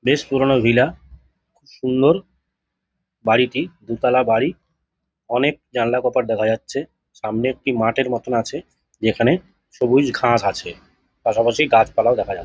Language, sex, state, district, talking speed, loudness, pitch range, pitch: Bengali, male, West Bengal, Jhargram, 125 wpm, -19 LUFS, 115-135 Hz, 125 Hz